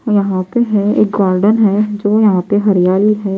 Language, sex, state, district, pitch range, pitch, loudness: Hindi, female, Bihar, Patna, 195-210 Hz, 205 Hz, -13 LUFS